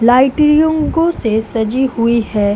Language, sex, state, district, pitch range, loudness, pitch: Hindi, female, Uttar Pradesh, Hamirpur, 225-300 Hz, -13 LUFS, 245 Hz